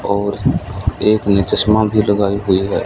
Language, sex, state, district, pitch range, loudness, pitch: Hindi, male, Haryana, Rohtak, 100-105 Hz, -15 LUFS, 100 Hz